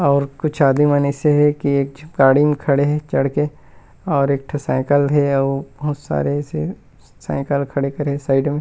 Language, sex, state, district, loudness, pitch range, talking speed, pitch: Chhattisgarhi, male, Chhattisgarh, Rajnandgaon, -18 LUFS, 140-150 Hz, 215 wpm, 140 Hz